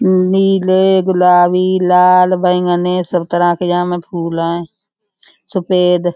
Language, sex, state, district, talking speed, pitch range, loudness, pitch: Hindi, female, Uttar Pradesh, Budaun, 125 wpm, 175-185 Hz, -13 LUFS, 180 Hz